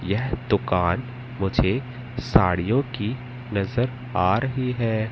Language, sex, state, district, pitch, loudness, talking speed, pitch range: Hindi, male, Madhya Pradesh, Katni, 120 Hz, -24 LUFS, 105 wpm, 100-125 Hz